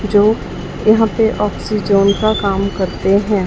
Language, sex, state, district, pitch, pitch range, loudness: Hindi, male, Chhattisgarh, Raipur, 205 Hz, 200-215 Hz, -15 LUFS